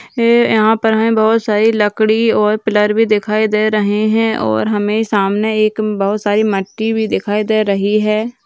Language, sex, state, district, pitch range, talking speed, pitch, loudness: Hindi, female, Bihar, Saharsa, 210-220 Hz, 185 wpm, 215 Hz, -14 LUFS